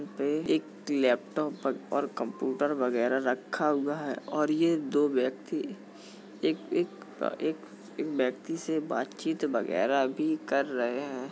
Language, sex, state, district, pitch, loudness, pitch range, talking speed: Hindi, male, Uttar Pradesh, Jalaun, 145 Hz, -30 LUFS, 130-155 Hz, 120 wpm